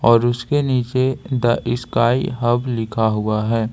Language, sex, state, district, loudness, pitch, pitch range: Hindi, male, Jharkhand, Ranchi, -19 LUFS, 120 Hz, 115-125 Hz